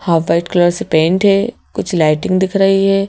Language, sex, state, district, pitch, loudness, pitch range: Hindi, female, Madhya Pradesh, Bhopal, 190 Hz, -14 LUFS, 170-195 Hz